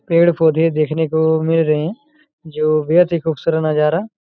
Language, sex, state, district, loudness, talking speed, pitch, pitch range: Hindi, male, Chhattisgarh, Raigarh, -16 LUFS, 155 wpm, 160 Hz, 155-170 Hz